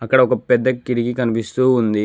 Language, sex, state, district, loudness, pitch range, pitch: Telugu, male, Telangana, Mahabubabad, -17 LUFS, 115-130 Hz, 125 Hz